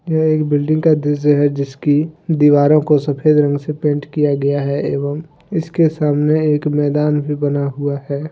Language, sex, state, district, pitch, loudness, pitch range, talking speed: Hindi, male, Jharkhand, Deoghar, 150 Hz, -16 LUFS, 145-155 Hz, 180 wpm